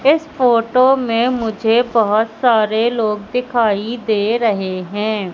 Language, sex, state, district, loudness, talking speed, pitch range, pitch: Hindi, female, Madhya Pradesh, Katni, -16 LUFS, 125 wpm, 215-245 Hz, 230 Hz